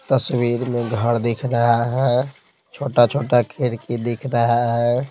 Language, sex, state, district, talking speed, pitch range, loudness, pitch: Hindi, male, Bihar, Patna, 130 wpm, 120-130 Hz, -20 LUFS, 120 Hz